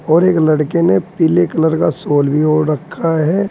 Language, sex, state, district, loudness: Hindi, male, Uttar Pradesh, Saharanpur, -14 LUFS